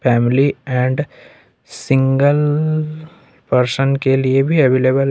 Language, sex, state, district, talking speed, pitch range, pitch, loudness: Hindi, male, Jharkhand, Ranchi, 105 wpm, 130-150 Hz, 135 Hz, -15 LUFS